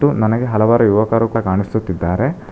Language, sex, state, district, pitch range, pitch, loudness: Kannada, male, Karnataka, Bangalore, 100-115 Hz, 110 Hz, -16 LUFS